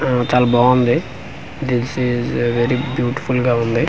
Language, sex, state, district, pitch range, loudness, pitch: Telugu, male, Andhra Pradesh, Manyam, 120-125 Hz, -17 LUFS, 125 Hz